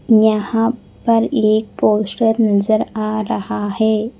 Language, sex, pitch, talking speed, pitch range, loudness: Hindi, female, 220 Hz, 115 wpm, 215-225 Hz, -16 LUFS